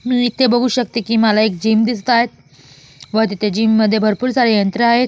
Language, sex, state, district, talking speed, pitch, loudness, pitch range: Marathi, female, Maharashtra, Solapur, 210 wpm, 220 Hz, -15 LUFS, 210-240 Hz